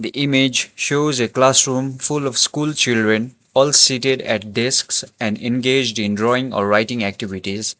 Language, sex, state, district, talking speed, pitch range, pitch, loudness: English, male, Sikkim, Gangtok, 155 wpm, 110-135 Hz, 125 Hz, -17 LUFS